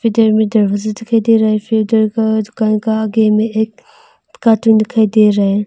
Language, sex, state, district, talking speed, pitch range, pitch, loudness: Hindi, female, Arunachal Pradesh, Longding, 150 wpm, 215-225 Hz, 220 Hz, -13 LUFS